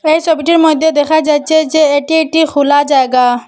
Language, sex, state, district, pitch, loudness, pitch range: Bengali, female, Assam, Hailakandi, 310 Hz, -11 LUFS, 285-320 Hz